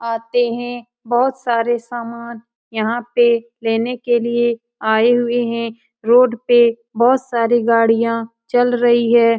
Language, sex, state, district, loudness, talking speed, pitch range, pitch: Hindi, female, Bihar, Lakhisarai, -16 LUFS, 135 wpm, 230-240 Hz, 235 Hz